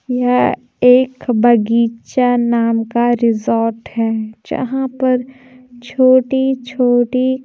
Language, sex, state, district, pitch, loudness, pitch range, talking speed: Hindi, female, Bihar, Kaimur, 245 Hz, -15 LUFS, 235-255 Hz, 90 wpm